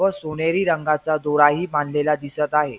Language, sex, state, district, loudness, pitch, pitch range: Marathi, male, Maharashtra, Pune, -20 LUFS, 150 Hz, 150-155 Hz